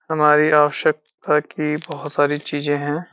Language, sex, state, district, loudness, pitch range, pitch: Hindi, male, Uttarakhand, Uttarkashi, -19 LUFS, 145-155 Hz, 150 Hz